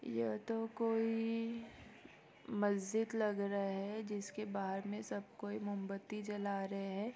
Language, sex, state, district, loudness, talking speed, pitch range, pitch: Hindi, female, Bihar, East Champaran, -40 LUFS, 150 wpm, 195-225 Hz, 205 Hz